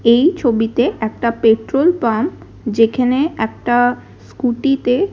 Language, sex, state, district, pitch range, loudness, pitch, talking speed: Bengali, female, Odisha, Khordha, 225-275 Hz, -16 LUFS, 245 Hz, 105 wpm